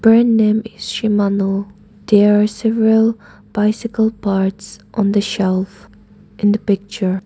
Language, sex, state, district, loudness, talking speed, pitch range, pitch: English, female, Nagaland, Dimapur, -16 LUFS, 115 wpm, 200-220 Hz, 205 Hz